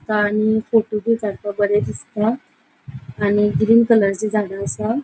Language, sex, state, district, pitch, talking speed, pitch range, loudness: Konkani, female, Goa, North and South Goa, 210 Hz, 130 wpm, 205-225 Hz, -18 LUFS